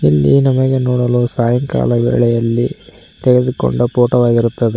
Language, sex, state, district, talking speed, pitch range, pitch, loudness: Kannada, male, Karnataka, Koppal, 100 wpm, 115-125 Hz, 120 Hz, -14 LUFS